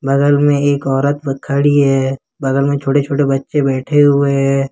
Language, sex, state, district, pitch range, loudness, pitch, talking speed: Hindi, male, Jharkhand, Ranchi, 135-145 Hz, -14 LUFS, 140 Hz, 180 wpm